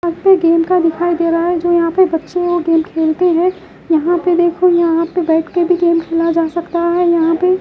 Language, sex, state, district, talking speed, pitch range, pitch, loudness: Hindi, female, Haryana, Jhajjar, 250 wpm, 330-350 Hz, 340 Hz, -14 LUFS